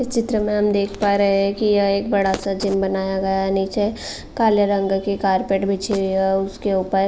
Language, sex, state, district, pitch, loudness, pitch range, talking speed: Hindi, female, Uttar Pradesh, Jalaun, 200 Hz, -20 LUFS, 195-205 Hz, 235 wpm